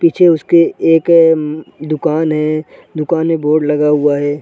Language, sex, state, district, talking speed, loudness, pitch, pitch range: Hindi, male, Chhattisgarh, Sarguja, 165 wpm, -13 LUFS, 155 Hz, 150-165 Hz